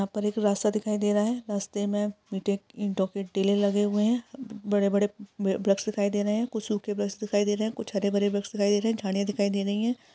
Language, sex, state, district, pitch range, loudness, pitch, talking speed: Hindi, female, Bihar, Darbhanga, 200-215 Hz, -27 LUFS, 205 Hz, 265 wpm